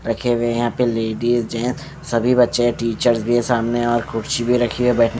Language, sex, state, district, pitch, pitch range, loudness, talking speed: Hindi, male, Bihar, West Champaran, 120 Hz, 115-125 Hz, -19 LUFS, 230 wpm